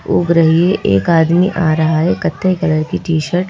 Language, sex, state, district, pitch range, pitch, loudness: Hindi, female, Madhya Pradesh, Bhopal, 160-180 Hz, 170 Hz, -14 LUFS